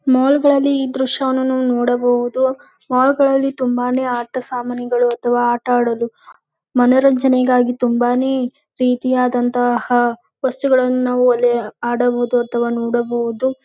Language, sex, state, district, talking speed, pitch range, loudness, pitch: Kannada, female, Karnataka, Gulbarga, 90 wpm, 245-260 Hz, -17 LUFS, 250 Hz